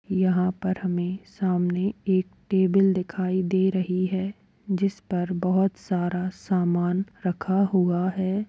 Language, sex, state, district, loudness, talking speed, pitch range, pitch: Hindi, female, Chhattisgarh, Kabirdham, -25 LUFS, 125 wpm, 180-190 Hz, 185 Hz